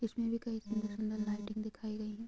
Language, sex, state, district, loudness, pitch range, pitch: Hindi, female, Jharkhand, Sahebganj, -39 LUFS, 215-225 Hz, 215 Hz